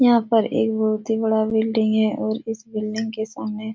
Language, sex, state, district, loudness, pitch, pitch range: Hindi, female, Bihar, Supaul, -22 LUFS, 220 Hz, 215-225 Hz